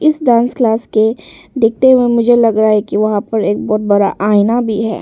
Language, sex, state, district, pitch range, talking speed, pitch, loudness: Hindi, female, Arunachal Pradesh, Longding, 215-240 Hz, 225 wpm, 225 Hz, -12 LUFS